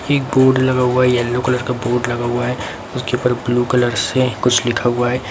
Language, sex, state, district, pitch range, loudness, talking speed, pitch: Hindi, male, Bihar, Lakhisarai, 120-125 Hz, -17 LUFS, 235 wpm, 125 Hz